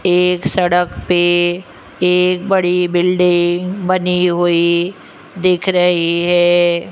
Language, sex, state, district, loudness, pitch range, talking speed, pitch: Hindi, female, Rajasthan, Jaipur, -14 LUFS, 175-180 Hz, 95 wpm, 180 Hz